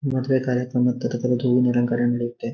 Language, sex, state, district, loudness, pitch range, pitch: Kannada, male, Karnataka, Shimoga, -22 LUFS, 120-125 Hz, 125 Hz